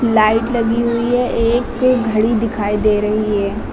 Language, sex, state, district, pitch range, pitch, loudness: Hindi, female, Uttar Pradesh, Lucknow, 215-235 Hz, 225 Hz, -16 LUFS